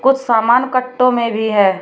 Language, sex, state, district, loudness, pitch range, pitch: Hindi, female, Uttar Pradesh, Shamli, -14 LUFS, 220-255 Hz, 240 Hz